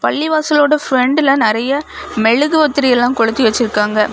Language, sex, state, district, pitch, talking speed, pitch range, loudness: Tamil, female, Tamil Nadu, Kanyakumari, 270 Hz, 100 wpm, 230-300 Hz, -13 LUFS